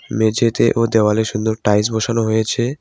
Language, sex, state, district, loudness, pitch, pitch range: Bengali, male, West Bengal, Cooch Behar, -17 LUFS, 110 Hz, 110-115 Hz